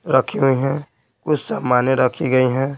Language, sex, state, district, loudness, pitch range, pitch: Hindi, male, Bihar, Patna, -18 LUFS, 130-140 Hz, 135 Hz